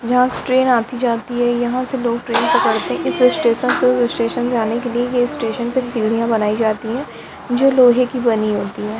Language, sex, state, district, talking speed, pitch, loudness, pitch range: Hindi, female, Bihar, Lakhisarai, 215 wpm, 240 Hz, -17 LUFS, 230-250 Hz